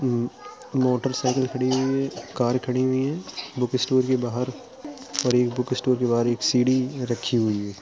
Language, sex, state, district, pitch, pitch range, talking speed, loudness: Hindi, male, Uttar Pradesh, Jalaun, 125 Hz, 125-130 Hz, 185 wpm, -24 LUFS